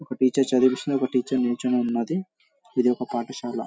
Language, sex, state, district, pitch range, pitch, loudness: Telugu, male, Telangana, Karimnagar, 120-130 Hz, 130 Hz, -24 LUFS